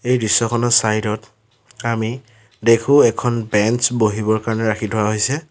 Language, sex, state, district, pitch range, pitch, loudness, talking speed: Assamese, male, Assam, Sonitpur, 110-120 Hz, 115 Hz, -17 LUFS, 140 wpm